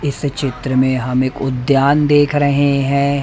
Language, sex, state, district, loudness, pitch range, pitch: Hindi, male, Madhya Pradesh, Umaria, -15 LUFS, 130-145 Hz, 140 Hz